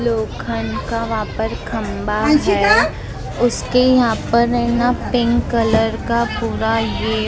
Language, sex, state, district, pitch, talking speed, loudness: Hindi, female, Maharashtra, Mumbai Suburban, 230 Hz, 140 wpm, -17 LUFS